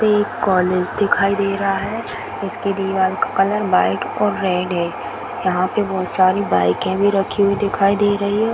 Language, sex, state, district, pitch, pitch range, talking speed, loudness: Hindi, female, Bihar, Jahanabad, 195 Hz, 185-205 Hz, 185 wpm, -18 LUFS